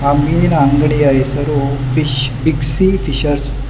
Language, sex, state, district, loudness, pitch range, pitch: Kannada, male, Karnataka, Bangalore, -14 LUFS, 135-150 Hz, 140 Hz